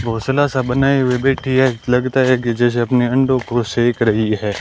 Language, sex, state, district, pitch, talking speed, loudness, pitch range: Hindi, male, Rajasthan, Bikaner, 125 Hz, 210 wpm, -16 LUFS, 120-130 Hz